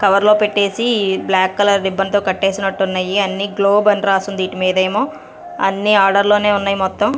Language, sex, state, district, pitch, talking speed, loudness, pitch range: Telugu, female, Andhra Pradesh, Sri Satya Sai, 200 Hz, 140 wpm, -15 LUFS, 190-205 Hz